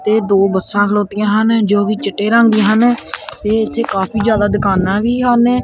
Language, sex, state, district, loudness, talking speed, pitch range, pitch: Punjabi, male, Punjab, Kapurthala, -14 LUFS, 190 wpm, 205-230 Hz, 215 Hz